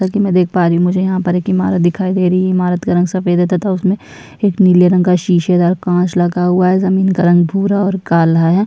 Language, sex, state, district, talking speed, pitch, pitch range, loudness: Hindi, female, Uttarakhand, Tehri Garhwal, 270 wpm, 180 Hz, 180-190 Hz, -13 LUFS